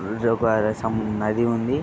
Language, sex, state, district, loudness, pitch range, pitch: Telugu, male, Andhra Pradesh, Srikakulam, -23 LUFS, 110-115 Hz, 110 Hz